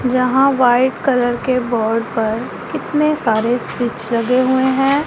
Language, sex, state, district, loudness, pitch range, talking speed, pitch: Hindi, female, Punjab, Pathankot, -16 LUFS, 235-265 Hz, 140 wpm, 250 Hz